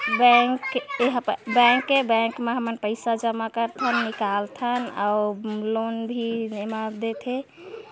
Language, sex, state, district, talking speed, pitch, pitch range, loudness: Hindi, female, Chhattisgarh, Korba, 135 wpm, 230 Hz, 220-250 Hz, -23 LUFS